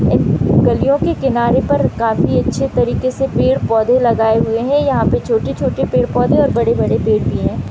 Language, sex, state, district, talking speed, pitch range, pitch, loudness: Hindi, female, Chhattisgarh, Raigarh, 165 wpm, 225-270 Hz, 240 Hz, -15 LUFS